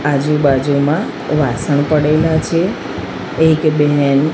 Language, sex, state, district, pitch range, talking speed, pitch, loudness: Gujarati, female, Gujarat, Gandhinagar, 145-155 Hz, 95 wpm, 150 Hz, -15 LUFS